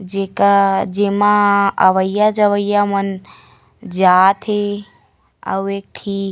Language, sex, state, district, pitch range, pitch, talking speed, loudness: Chhattisgarhi, female, Chhattisgarh, Raigarh, 195-205 Hz, 200 Hz, 65 wpm, -15 LUFS